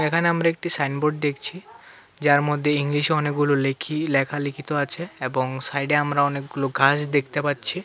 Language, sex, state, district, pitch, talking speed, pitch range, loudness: Bengali, male, Tripura, West Tripura, 145 Hz, 155 wpm, 140-150 Hz, -22 LUFS